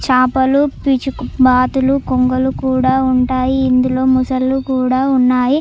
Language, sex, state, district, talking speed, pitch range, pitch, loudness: Telugu, female, Andhra Pradesh, Chittoor, 105 wpm, 255-265 Hz, 260 Hz, -14 LUFS